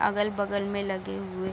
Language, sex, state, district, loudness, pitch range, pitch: Hindi, female, Bihar, East Champaran, -30 LUFS, 190-205 Hz, 200 Hz